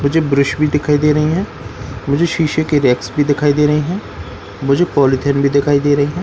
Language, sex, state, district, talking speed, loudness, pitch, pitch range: Hindi, male, Bihar, Katihar, 220 wpm, -15 LUFS, 145 Hz, 140-150 Hz